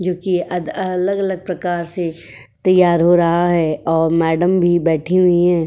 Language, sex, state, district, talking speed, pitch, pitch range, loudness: Hindi, female, Uttar Pradesh, Jyotiba Phule Nagar, 180 wpm, 175 Hz, 170-180 Hz, -16 LUFS